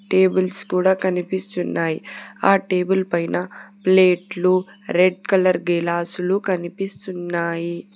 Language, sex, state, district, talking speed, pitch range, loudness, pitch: Telugu, female, Telangana, Hyderabad, 85 wpm, 175-190 Hz, -20 LUFS, 185 Hz